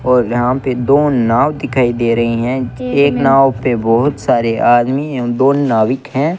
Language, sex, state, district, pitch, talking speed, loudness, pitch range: Hindi, male, Rajasthan, Bikaner, 125 Hz, 180 wpm, -14 LUFS, 120-140 Hz